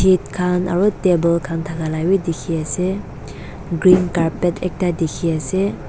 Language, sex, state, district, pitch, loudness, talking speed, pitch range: Nagamese, female, Nagaland, Dimapur, 175 Hz, -19 LUFS, 135 wpm, 165-185 Hz